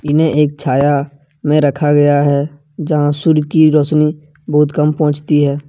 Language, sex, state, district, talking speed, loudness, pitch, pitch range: Hindi, male, Jharkhand, Ranchi, 160 wpm, -13 LUFS, 150 Hz, 145-150 Hz